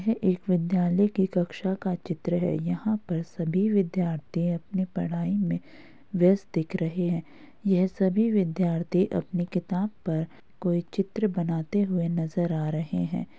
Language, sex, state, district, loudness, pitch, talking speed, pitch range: Hindi, female, Uttar Pradesh, Jyotiba Phule Nagar, -27 LUFS, 180 Hz, 150 wpm, 170-195 Hz